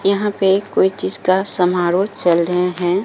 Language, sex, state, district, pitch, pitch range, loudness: Hindi, female, Bihar, Katihar, 185 Hz, 180-195 Hz, -16 LUFS